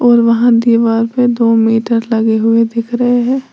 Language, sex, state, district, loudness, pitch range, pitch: Hindi, female, Uttar Pradesh, Lalitpur, -12 LUFS, 225-240 Hz, 230 Hz